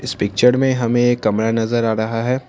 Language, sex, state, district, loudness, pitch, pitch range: Hindi, male, Assam, Kamrup Metropolitan, -17 LUFS, 120 Hz, 110-125 Hz